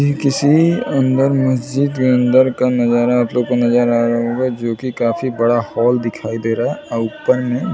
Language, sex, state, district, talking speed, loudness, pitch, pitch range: Hindi, male, Chhattisgarh, Bilaspur, 195 wpm, -16 LUFS, 125 Hz, 120-130 Hz